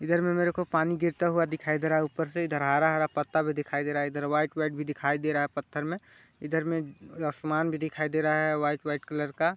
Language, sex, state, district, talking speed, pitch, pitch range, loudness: Hindi, male, Chhattisgarh, Balrampur, 265 wpm, 155 Hz, 150-160 Hz, -29 LUFS